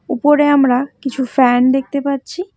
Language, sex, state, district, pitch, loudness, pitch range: Bengali, female, West Bengal, Cooch Behar, 270 Hz, -15 LUFS, 260-290 Hz